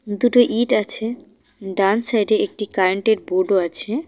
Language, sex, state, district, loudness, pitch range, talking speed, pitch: Bengali, female, West Bengal, Cooch Behar, -17 LUFS, 195-235 Hz, 130 wpm, 215 Hz